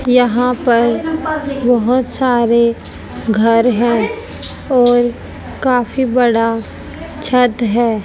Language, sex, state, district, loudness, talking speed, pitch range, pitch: Hindi, female, Haryana, Jhajjar, -14 LUFS, 80 wpm, 235-250 Hz, 245 Hz